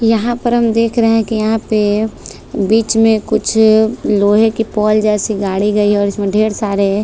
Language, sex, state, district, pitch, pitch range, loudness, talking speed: Hindi, female, Maharashtra, Chandrapur, 215 Hz, 210-225 Hz, -13 LUFS, 205 wpm